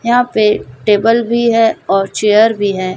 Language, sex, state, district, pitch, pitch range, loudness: Hindi, female, Chhattisgarh, Raipur, 220 Hz, 205-235 Hz, -12 LUFS